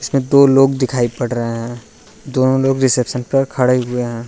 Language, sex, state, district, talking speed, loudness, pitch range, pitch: Hindi, male, Arunachal Pradesh, Lower Dibang Valley, 180 wpm, -15 LUFS, 120-135 Hz, 130 Hz